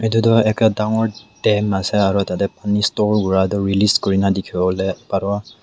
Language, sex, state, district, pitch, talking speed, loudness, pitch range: Nagamese, male, Nagaland, Dimapur, 105 Hz, 190 wpm, -18 LUFS, 95-105 Hz